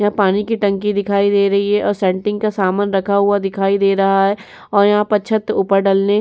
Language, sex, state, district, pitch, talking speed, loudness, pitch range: Hindi, female, Uttar Pradesh, Jyotiba Phule Nagar, 200 Hz, 250 wpm, -16 LUFS, 195-205 Hz